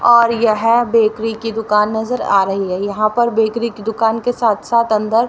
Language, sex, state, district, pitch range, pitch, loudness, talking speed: Hindi, female, Haryana, Rohtak, 215-235 Hz, 225 Hz, -16 LUFS, 205 wpm